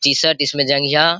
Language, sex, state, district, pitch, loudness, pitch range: Hindi, male, Bihar, Saharsa, 145 Hz, -15 LUFS, 140-160 Hz